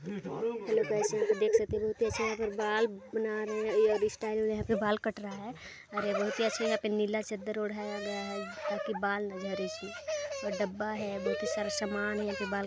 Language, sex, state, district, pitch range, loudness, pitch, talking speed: Hindi, female, Chhattisgarh, Balrampur, 205-225 Hz, -33 LUFS, 215 Hz, 225 wpm